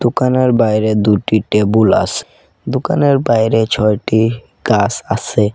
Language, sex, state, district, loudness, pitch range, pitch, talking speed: Bengali, male, Assam, Kamrup Metropolitan, -14 LUFS, 105-120 Hz, 110 Hz, 110 wpm